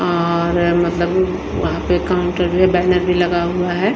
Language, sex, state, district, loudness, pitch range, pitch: Hindi, female, Himachal Pradesh, Shimla, -17 LUFS, 175-180 Hz, 175 Hz